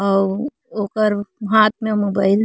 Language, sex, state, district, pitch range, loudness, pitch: Chhattisgarhi, female, Chhattisgarh, Korba, 200-215 Hz, -19 LUFS, 210 Hz